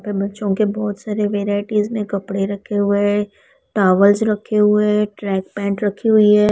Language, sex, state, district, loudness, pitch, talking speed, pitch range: Hindi, female, Rajasthan, Jaipur, -18 LUFS, 205 Hz, 185 wpm, 200-210 Hz